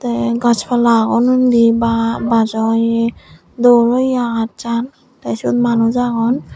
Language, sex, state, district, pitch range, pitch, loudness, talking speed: Chakma, female, Tripura, Dhalai, 230-240 Hz, 235 Hz, -15 LUFS, 130 wpm